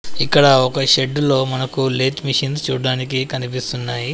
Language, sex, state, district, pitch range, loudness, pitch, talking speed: Telugu, male, Telangana, Adilabad, 130-135 Hz, -17 LUFS, 130 Hz, 115 wpm